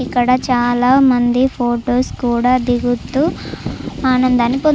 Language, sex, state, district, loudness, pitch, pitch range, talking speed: Telugu, female, Andhra Pradesh, Chittoor, -15 LUFS, 250 Hz, 245-255 Hz, 90 wpm